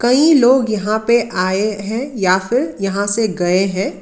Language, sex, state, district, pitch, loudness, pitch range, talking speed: Hindi, female, Karnataka, Bangalore, 215 Hz, -16 LUFS, 195-240 Hz, 180 wpm